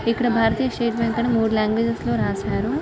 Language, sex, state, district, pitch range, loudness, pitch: Telugu, female, Andhra Pradesh, Krishna, 225-235 Hz, -21 LUFS, 230 Hz